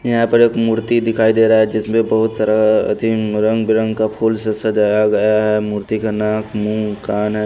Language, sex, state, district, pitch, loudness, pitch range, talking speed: Hindi, male, Haryana, Rohtak, 110 Hz, -16 LUFS, 105-110 Hz, 195 wpm